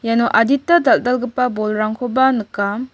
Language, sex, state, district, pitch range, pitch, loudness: Garo, female, Meghalaya, West Garo Hills, 220-260 Hz, 245 Hz, -17 LUFS